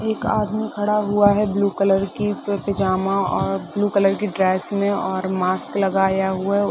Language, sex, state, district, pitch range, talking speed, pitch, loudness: Hindi, female, Uttar Pradesh, Gorakhpur, 190-205 Hz, 190 wpm, 200 Hz, -20 LUFS